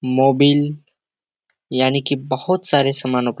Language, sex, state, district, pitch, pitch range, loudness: Hindi, male, Bihar, Kishanganj, 135 Hz, 130-145 Hz, -18 LUFS